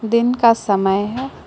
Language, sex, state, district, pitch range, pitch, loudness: Hindi, female, Jharkhand, Palamu, 205-240 Hz, 230 Hz, -17 LUFS